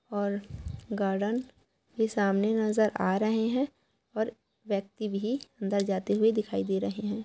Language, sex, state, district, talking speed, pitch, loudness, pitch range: Hindi, female, Chhattisgarh, Korba, 155 wpm, 210 Hz, -30 LUFS, 200-225 Hz